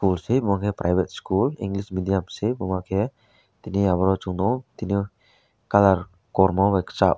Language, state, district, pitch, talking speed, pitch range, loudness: Kokborok, Tripura, West Tripura, 100 Hz, 160 wpm, 95-100 Hz, -23 LUFS